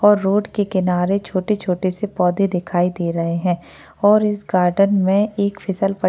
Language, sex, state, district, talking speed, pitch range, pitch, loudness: Hindi, female, Maharashtra, Chandrapur, 195 wpm, 180-205 Hz, 195 Hz, -19 LUFS